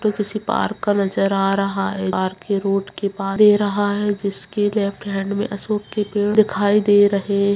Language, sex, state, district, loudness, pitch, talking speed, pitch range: Hindi, female, Bihar, Purnia, -19 LUFS, 200 Hz, 185 wpm, 195-205 Hz